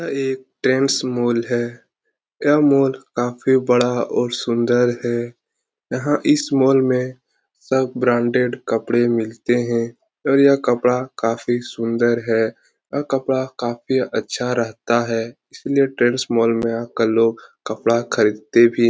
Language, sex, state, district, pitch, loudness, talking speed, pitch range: Hindi, male, Bihar, Lakhisarai, 120 Hz, -19 LUFS, 135 wpm, 120-130 Hz